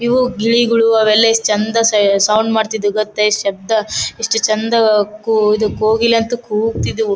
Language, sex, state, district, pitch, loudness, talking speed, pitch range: Kannada, female, Karnataka, Bellary, 220 Hz, -14 LUFS, 140 wpm, 210-230 Hz